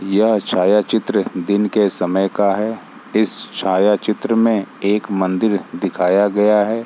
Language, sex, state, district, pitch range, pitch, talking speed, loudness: Hindi, male, Bihar, Sitamarhi, 100-110 Hz, 105 Hz, 130 wpm, -17 LUFS